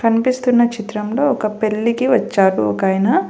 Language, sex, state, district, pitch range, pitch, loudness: Telugu, female, Telangana, Hyderabad, 205-245 Hz, 220 Hz, -17 LUFS